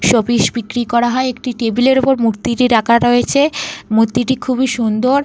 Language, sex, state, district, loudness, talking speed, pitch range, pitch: Bengali, female, Jharkhand, Jamtara, -15 LUFS, 160 wpm, 235-260 Hz, 245 Hz